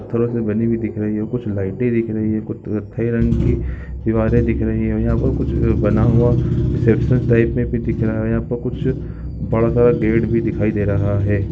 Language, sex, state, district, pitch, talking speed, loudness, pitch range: Hindi, male, Chhattisgarh, Bilaspur, 115 Hz, 225 wpm, -18 LUFS, 110-120 Hz